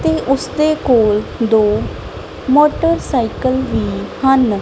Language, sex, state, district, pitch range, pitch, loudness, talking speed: Punjabi, female, Punjab, Kapurthala, 215-295 Hz, 255 Hz, -15 LUFS, 90 wpm